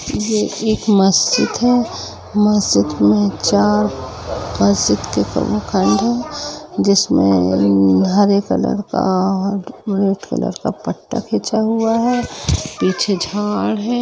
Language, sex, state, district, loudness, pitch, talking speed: Hindi, female, Jharkhand, Jamtara, -16 LUFS, 200 Hz, 85 wpm